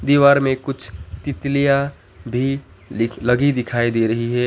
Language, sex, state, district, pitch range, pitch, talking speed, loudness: Hindi, male, West Bengal, Alipurduar, 115-140 Hz, 125 Hz, 135 wpm, -19 LUFS